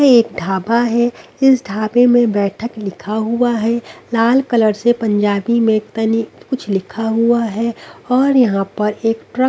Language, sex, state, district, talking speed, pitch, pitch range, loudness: Hindi, female, Haryana, Rohtak, 165 wpm, 230 Hz, 215-240 Hz, -16 LUFS